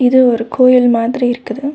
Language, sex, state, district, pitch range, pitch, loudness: Tamil, female, Tamil Nadu, Nilgiris, 235-255 Hz, 250 Hz, -12 LUFS